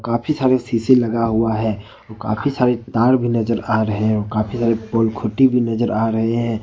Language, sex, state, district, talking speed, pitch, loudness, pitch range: Hindi, male, Jharkhand, Ranchi, 190 wpm, 115 Hz, -18 LUFS, 110-120 Hz